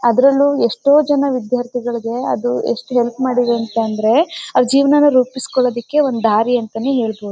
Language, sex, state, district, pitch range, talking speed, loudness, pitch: Kannada, female, Karnataka, Mysore, 230-275 Hz, 145 wpm, -16 LUFS, 245 Hz